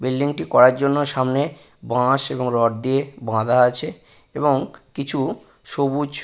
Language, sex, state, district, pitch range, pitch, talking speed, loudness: Bengali, male, West Bengal, Purulia, 125-140 Hz, 135 Hz, 135 wpm, -20 LUFS